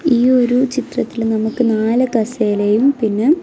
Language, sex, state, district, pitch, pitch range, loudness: Malayalam, female, Kerala, Kasaragod, 240 Hz, 220-255 Hz, -16 LUFS